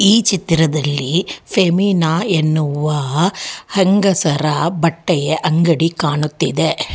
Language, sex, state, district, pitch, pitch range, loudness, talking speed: Kannada, female, Karnataka, Bangalore, 165 Hz, 155-185 Hz, -16 LUFS, 70 wpm